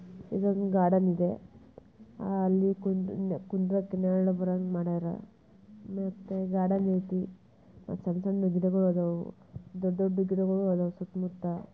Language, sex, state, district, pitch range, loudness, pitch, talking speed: Kannada, female, Karnataka, Bijapur, 180-195 Hz, -30 LUFS, 190 Hz, 100 wpm